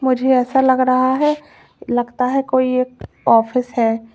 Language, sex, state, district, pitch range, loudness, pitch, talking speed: Hindi, female, Uttar Pradesh, Lalitpur, 245-260 Hz, -17 LUFS, 255 Hz, 160 wpm